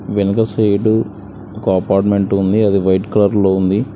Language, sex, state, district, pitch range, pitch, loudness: Telugu, male, Telangana, Hyderabad, 95-105 Hz, 100 Hz, -15 LUFS